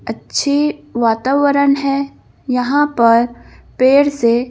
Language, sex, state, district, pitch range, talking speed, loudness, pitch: Hindi, female, Madhya Pradesh, Bhopal, 240-285 Hz, 80 wpm, -15 LUFS, 275 Hz